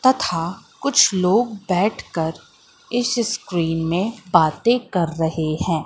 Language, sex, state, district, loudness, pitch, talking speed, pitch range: Hindi, female, Madhya Pradesh, Katni, -20 LUFS, 190 Hz, 110 wpm, 165-240 Hz